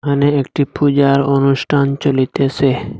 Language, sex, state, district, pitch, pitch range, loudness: Bengali, male, Assam, Hailakandi, 140 Hz, 135-145 Hz, -15 LUFS